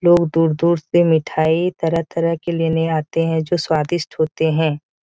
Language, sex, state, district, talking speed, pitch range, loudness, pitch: Hindi, female, Bihar, Jahanabad, 155 wpm, 160-170 Hz, -18 LUFS, 165 Hz